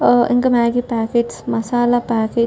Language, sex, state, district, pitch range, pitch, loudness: Telugu, female, Telangana, Karimnagar, 230-245 Hz, 235 Hz, -17 LUFS